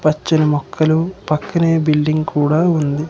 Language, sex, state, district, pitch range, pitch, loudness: Telugu, male, Andhra Pradesh, Manyam, 150-160 Hz, 155 Hz, -16 LUFS